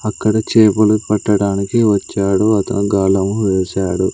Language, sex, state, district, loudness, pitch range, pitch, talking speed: Telugu, male, Andhra Pradesh, Sri Satya Sai, -15 LUFS, 95-110 Hz, 100 Hz, 100 wpm